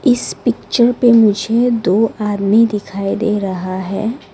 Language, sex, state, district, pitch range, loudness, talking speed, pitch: Hindi, female, Arunachal Pradesh, Lower Dibang Valley, 200-230 Hz, -15 LUFS, 140 wpm, 215 Hz